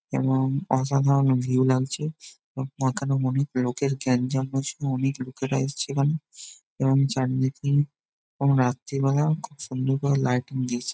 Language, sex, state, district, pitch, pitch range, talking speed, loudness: Bengali, male, West Bengal, Jhargram, 135 Hz, 130-140 Hz, 110 wpm, -25 LUFS